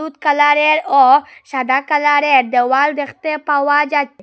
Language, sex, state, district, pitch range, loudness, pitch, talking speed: Bengali, female, Assam, Hailakandi, 275-300 Hz, -14 LUFS, 290 Hz, 130 wpm